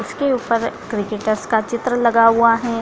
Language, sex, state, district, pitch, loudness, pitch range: Hindi, female, Bihar, Gaya, 230 Hz, -17 LUFS, 220-235 Hz